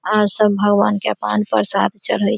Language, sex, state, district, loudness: Maithili, female, Bihar, Samastipur, -17 LUFS